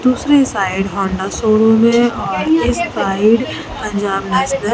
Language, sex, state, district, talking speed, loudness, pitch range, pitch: Hindi, female, Bihar, Katihar, 140 wpm, -15 LUFS, 195-240 Hz, 215 Hz